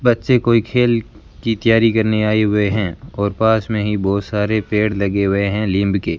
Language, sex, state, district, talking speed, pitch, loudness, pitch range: Hindi, male, Rajasthan, Bikaner, 215 wpm, 105 Hz, -17 LUFS, 100-115 Hz